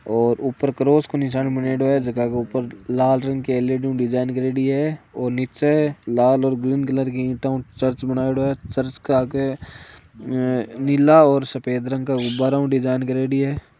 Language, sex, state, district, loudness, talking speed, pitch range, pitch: Hindi, male, Rajasthan, Nagaur, -20 LUFS, 180 wpm, 125-135 Hz, 130 Hz